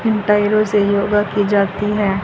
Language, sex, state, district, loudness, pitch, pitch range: Hindi, female, Haryana, Rohtak, -16 LUFS, 205 Hz, 200-210 Hz